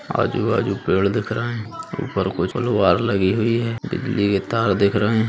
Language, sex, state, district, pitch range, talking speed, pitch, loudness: Hindi, male, Bihar, Jahanabad, 100-120 Hz, 205 wpm, 110 Hz, -21 LUFS